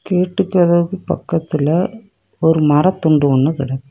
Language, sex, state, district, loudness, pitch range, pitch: Tamil, female, Tamil Nadu, Kanyakumari, -16 LUFS, 150-180 Hz, 165 Hz